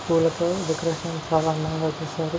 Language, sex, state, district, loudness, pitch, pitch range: Telugu, male, Telangana, Nalgonda, -25 LUFS, 165 Hz, 160-165 Hz